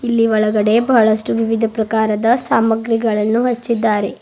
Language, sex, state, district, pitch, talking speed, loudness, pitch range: Kannada, female, Karnataka, Bidar, 225 Hz, 100 wpm, -15 LUFS, 220-235 Hz